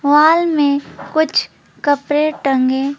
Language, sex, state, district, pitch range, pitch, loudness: Hindi, female, West Bengal, Alipurduar, 280-310 Hz, 290 Hz, -16 LUFS